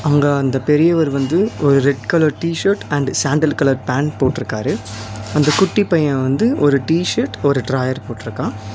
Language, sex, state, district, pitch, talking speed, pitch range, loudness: Tamil, male, Tamil Nadu, Nilgiris, 140 Hz, 150 wpm, 130-155 Hz, -17 LUFS